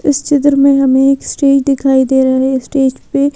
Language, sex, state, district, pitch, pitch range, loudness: Hindi, female, Madhya Pradesh, Bhopal, 275 Hz, 265-280 Hz, -11 LUFS